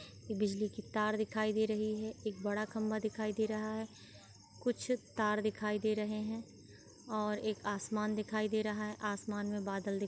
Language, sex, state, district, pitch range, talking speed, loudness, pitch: Hindi, female, Uttar Pradesh, Jyotiba Phule Nagar, 210-215 Hz, 190 wpm, -37 LUFS, 215 Hz